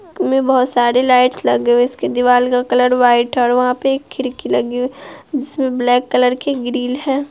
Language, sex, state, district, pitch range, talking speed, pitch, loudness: Hindi, female, Bihar, Araria, 245-270 Hz, 220 wpm, 250 Hz, -15 LUFS